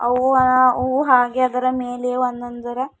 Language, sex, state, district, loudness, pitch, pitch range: Kannada, female, Karnataka, Bidar, -18 LUFS, 255 Hz, 245-255 Hz